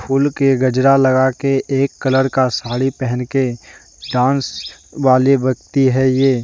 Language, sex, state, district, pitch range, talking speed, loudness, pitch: Hindi, male, Jharkhand, Deoghar, 130-135 Hz, 150 wpm, -16 LUFS, 130 Hz